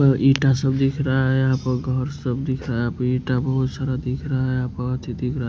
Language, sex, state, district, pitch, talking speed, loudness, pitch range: Hindi, male, Punjab, Kapurthala, 130 Hz, 230 wpm, -22 LUFS, 125-135 Hz